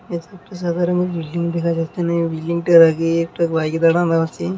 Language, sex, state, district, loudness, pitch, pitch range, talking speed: Bengali, male, West Bengal, Jhargram, -18 LUFS, 170 Hz, 165-175 Hz, 185 wpm